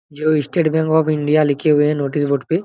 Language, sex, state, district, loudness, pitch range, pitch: Hindi, male, Chhattisgarh, Raigarh, -17 LUFS, 145-160 Hz, 155 Hz